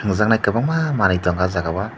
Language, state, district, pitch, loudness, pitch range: Kokborok, Tripura, Dhalai, 100 Hz, -19 LUFS, 90-115 Hz